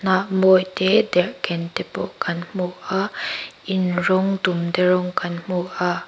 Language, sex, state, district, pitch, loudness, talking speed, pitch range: Mizo, female, Mizoram, Aizawl, 185 Hz, -21 LUFS, 160 wpm, 180-190 Hz